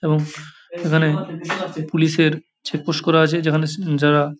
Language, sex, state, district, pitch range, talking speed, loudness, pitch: Bengali, male, West Bengal, Paschim Medinipur, 155-165 Hz, 150 wpm, -20 LUFS, 160 Hz